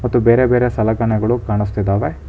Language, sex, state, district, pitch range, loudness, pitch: Kannada, male, Karnataka, Bangalore, 105-120 Hz, -16 LUFS, 110 Hz